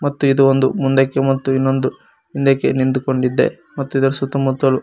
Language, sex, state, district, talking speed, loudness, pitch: Kannada, male, Karnataka, Koppal, 150 wpm, -17 LUFS, 135 Hz